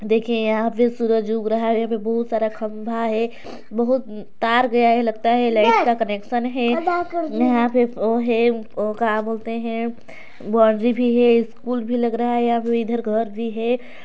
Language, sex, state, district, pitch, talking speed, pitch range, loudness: Hindi, female, Chhattisgarh, Sarguja, 230 Hz, 195 wpm, 225-240 Hz, -20 LUFS